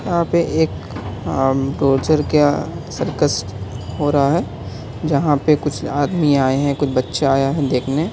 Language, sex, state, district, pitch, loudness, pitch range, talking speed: Hindi, male, Bihar, Kishanganj, 140 Hz, -18 LUFS, 125-150 Hz, 140 wpm